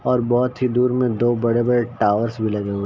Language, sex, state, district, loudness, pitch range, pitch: Hindi, male, Uttar Pradesh, Ghazipur, -19 LUFS, 110-125 Hz, 120 Hz